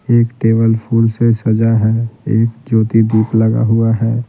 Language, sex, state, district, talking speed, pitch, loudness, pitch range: Hindi, male, Bihar, Patna, 165 wpm, 115 Hz, -14 LUFS, 110-115 Hz